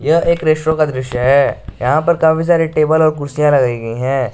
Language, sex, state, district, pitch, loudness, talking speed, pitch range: Hindi, male, Jharkhand, Garhwa, 150 Hz, -14 LUFS, 205 wpm, 130-160 Hz